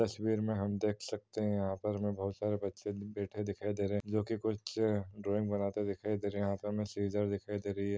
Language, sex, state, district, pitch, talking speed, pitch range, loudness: Hindi, male, Uttar Pradesh, Muzaffarnagar, 105 Hz, 270 wpm, 100-105 Hz, -36 LUFS